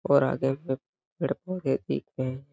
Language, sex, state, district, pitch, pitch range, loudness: Hindi, male, Chhattisgarh, Balrampur, 135 Hz, 135-175 Hz, -29 LUFS